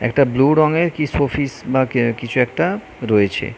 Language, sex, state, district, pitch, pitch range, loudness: Bengali, male, West Bengal, North 24 Parganas, 130 Hz, 120-150 Hz, -18 LUFS